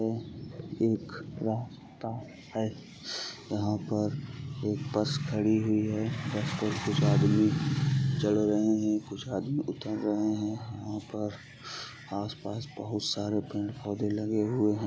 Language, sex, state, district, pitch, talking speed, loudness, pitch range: Bhojpuri, male, Uttar Pradesh, Gorakhpur, 110 Hz, 135 wpm, -31 LUFS, 105-135 Hz